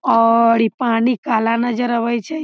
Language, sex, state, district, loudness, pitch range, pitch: Maithili, female, Bihar, Samastipur, -16 LUFS, 230-245 Hz, 230 Hz